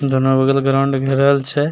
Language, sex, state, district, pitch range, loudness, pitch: Maithili, male, Bihar, Begusarai, 135-140 Hz, -15 LUFS, 135 Hz